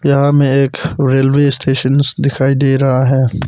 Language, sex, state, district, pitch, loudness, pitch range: Hindi, male, Arunachal Pradesh, Papum Pare, 135 Hz, -13 LUFS, 135-140 Hz